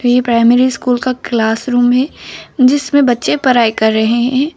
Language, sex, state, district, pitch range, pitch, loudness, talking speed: Hindi, female, Arunachal Pradesh, Papum Pare, 235-260 Hz, 245 Hz, -12 LUFS, 155 wpm